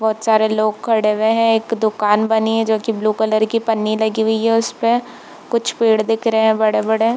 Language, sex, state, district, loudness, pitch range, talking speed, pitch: Hindi, female, Jharkhand, Sahebganj, -17 LUFS, 215-225 Hz, 235 wpm, 220 Hz